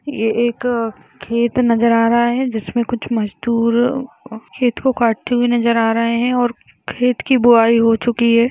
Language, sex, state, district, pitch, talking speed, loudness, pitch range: Hindi, female, Uttar Pradesh, Jalaun, 235 Hz, 175 wpm, -16 LUFS, 230-245 Hz